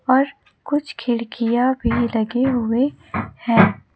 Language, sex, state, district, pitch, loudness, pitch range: Hindi, female, Chhattisgarh, Raipur, 245 Hz, -20 LUFS, 235-270 Hz